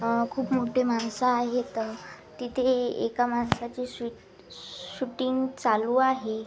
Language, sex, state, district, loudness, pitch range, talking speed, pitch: Marathi, female, Maharashtra, Washim, -27 LUFS, 235-255 Hz, 100 wpm, 245 Hz